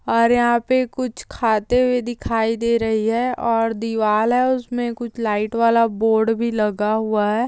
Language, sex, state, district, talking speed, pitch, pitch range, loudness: Hindi, female, Andhra Pradesh, Chittoor, 175 wpm, 230 Hz, 220-240 Hz, -19 LUFS